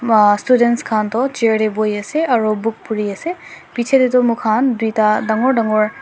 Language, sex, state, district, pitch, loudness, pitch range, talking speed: Nagamese, female, Nagaland, Dimapur, 225 Hz, -16 LUFS, 215-250 Hz, 170 wpm